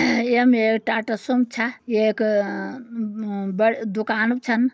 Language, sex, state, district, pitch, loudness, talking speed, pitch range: Garhwali, female, Uttarakhand, Uttarkashi, 225 Hz, -22 LUFS, 165 wpm, 215-245 Hz